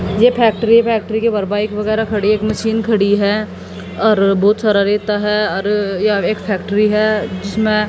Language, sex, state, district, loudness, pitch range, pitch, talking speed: Hindi, female, Haryana, Jhajjar, -15 LUFS, 205-220 Hz, 210 Hz, 190 wpm